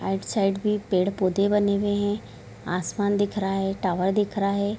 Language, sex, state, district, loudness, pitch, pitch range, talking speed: Hindi, female, Bihar, Bhagalpur, -25 LUFS, 200 Hz, 195-205 Hz, 190 wpm